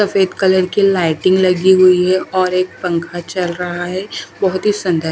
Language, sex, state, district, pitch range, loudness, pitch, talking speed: Hindi, female, Haryana, Charkhi Dadri, 180-190 Hz, -15 LUFS, 185 Hz, 190 wpm